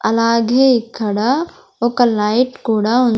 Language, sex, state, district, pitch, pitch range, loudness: Telugu, female, Andhra Pradesh, Sri Satya Sai, 235 Hz, 225-255 Hz, -16 LUFS